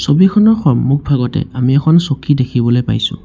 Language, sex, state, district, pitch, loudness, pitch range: Assamese, male, Assam, Sonitpur, 140 Hz, -13 LUFS, 125-160 Hz